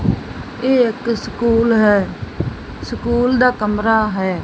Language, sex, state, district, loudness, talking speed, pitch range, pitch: Punjabi, female, Punjab, Fazilka, -17 LUFS, 110 wpm, 210-240 Hz, 230 Hz